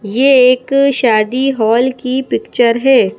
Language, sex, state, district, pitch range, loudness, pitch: Hindi, female, Madhya Pradesh, Bhopal, 235-265 Hz, -12 LUFS, 255 Hz